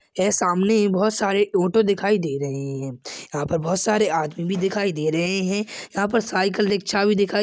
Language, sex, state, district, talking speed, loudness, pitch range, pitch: Hindi, male, Chhattisgarh, Balrampur, 200 wpm, -22 LUFS, 170-205 Hz, 195 Hz